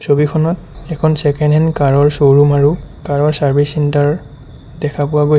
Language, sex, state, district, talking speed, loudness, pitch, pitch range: Assamese, male, Assam, Sonitpur, 165 wpm, -13 LUFS, 145 Hz, 145-155 Hz